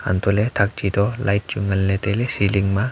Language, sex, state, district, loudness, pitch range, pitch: Wancho, male, Arunachal Pradesh, Longding, -20 LUFS, 100-105 Hz, 100 Hz